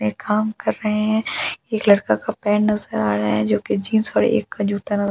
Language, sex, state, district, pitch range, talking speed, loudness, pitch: Hindi, female, Delhi, New Delhi, 195-220 Hz, 225 wpm, -20 LUFS, 210 Hz